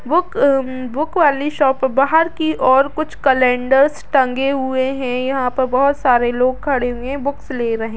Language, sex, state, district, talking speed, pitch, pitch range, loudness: Hindi, female, Bihar, Gopalganj, 180 wpm, 265 Hz, 255-280 Hz, -17 LUFS